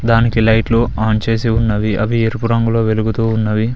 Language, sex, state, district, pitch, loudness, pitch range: Telugu, male, Telangana, Mahabubabad, 115 Hz, -15 LUFS, 110-115 Hz